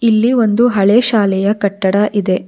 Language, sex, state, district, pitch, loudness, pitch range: Kannada, female, Karnataka, Bangalore, 210 Hz, -13 LUFS, 200-230 Hz